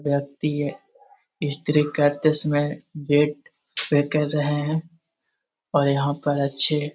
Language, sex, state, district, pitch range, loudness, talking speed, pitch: Magahi, male, Bihar, Jahanabad, 145-150 Hz, -21 LUFS, 130 wpm, 145 Hz